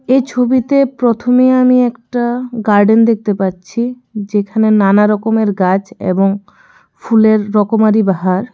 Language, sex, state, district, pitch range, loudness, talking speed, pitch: Bengali, female, Tripura, West Tripura, 205-245 Hz, -13 LUFS, 110 wpm, 220 Hz